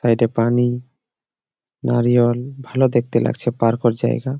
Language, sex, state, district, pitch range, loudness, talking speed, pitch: Bengali, male, West Bengal, Malda, 115-125 Hz, -19 LUFS, 110 wpm, 120 Hz